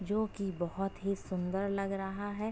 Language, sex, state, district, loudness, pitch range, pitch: Hindi, female, Uttar Pradesh, Etah, -36 LUFS, 190-200 Hz, 195 Hz